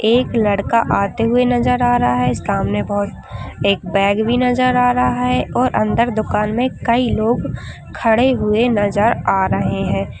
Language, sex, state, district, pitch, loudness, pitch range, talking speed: Hindi, female, Chhattisgarh, Rajnandgaon, 230 Hz, -16 LUFS, 205-245 Hz, 175 wpm